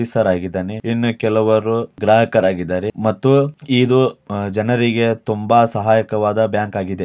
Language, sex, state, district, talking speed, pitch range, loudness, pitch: Kannada, male, Karnataka, Dharwad, 110 wpm, 105-115 Hz, -17 LUFS, 110 Hz